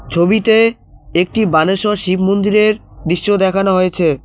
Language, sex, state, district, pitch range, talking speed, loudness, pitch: Bengali, male, West Bengal, Cooch Behar, 175-210 Hz, 115 wpm, -14 LUFS, 190 Hz